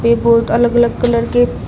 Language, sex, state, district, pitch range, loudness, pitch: Hindi, female, Uttar Pradesh, Shamli, 235-240 Hz, -13 LUFS, 235 Hz